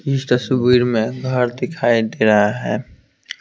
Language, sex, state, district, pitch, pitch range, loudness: Hindi, male, Bihar, Patna, 125 Hz, 110-125 Hz, -17 LUFS